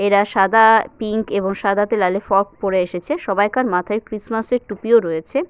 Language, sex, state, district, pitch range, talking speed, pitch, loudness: Bengali, female, West Bengal, Paschim Medinipur, 195-225 Hz, 175 wpm, 205 Hz, -18 LUFS